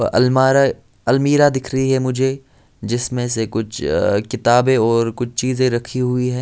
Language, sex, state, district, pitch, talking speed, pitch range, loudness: Hindi, male, Bihar, Patna, 125 Hz, 170 wpm, 120-130 Hz, -17 LUFS